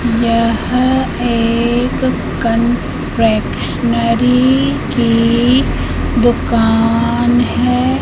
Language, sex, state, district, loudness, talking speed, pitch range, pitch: Hindi, female, Madhya Pradesh, Katni, -14 LUFS, 45 wpm, 230-240 Hz, 235 Hz